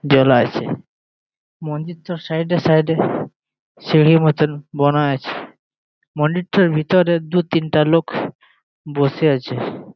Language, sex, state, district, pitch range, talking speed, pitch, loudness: Bengali, male, West Bengal, Jalpaiguri, 145-165 Hz, 95 wpm, 155 Hz, -18 LUFS